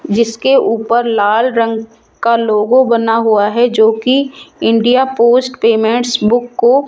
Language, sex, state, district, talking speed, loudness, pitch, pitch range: Hindi, female, Rajasthan, Jaipur, 150 wpm, -12 LUFS, 230 Hz, 225-245 Hz